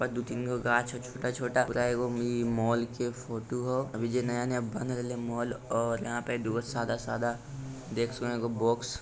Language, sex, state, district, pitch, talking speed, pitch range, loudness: Hindi, male, Bihar, Lakhisarai, 120 Hz, 195 wpm, 115-125 Hz, -32 LUFS